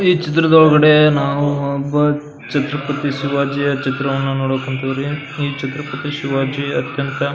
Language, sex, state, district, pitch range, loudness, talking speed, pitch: Kannada, male, Karnataka, Belgaum, 135-150 Hz, -17 LUFS, 120 wpm, 140 Hz